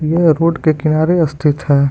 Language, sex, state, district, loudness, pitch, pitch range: Hindi, male, Bihar, Begusarai, -14 LUFS, 155 Hz, 150-165 Hz